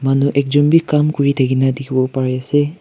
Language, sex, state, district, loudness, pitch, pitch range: Nagamese, male, Nagaland, Kohima, -15 LUFS, 140 Hz, 130-145 Hz